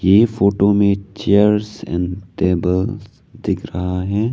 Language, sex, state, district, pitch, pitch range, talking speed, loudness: Hindi, male, Arunachal Pradesh, Lower Dibang Valley, 100 Hz, 90-105 Hz, 125 wpm, -18 LUFS